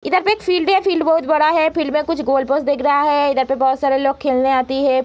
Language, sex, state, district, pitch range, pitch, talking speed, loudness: Hindi, female, Bihar, Gopalganj, 270-325 Hz, 290 Hz, 295 wpm, -16 LUFS